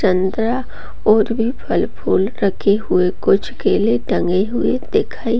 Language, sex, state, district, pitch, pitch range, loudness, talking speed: Hindi, female, Bihar, Gopalganj, 215 Hz, 190-240 Hz, -18 LUFS, 135 wpm